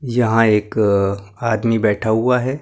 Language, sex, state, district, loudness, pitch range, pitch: Hindi, male, Maharashtra, Gondia, -17 LUFS, 105-120 Hz, 110 Hz